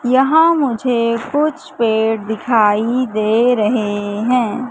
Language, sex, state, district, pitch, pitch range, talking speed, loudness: Hindi, female, Madhya Pradesh, Katni, 235 Hz, 220-255 Hz, 100 wpm, -15 LUFS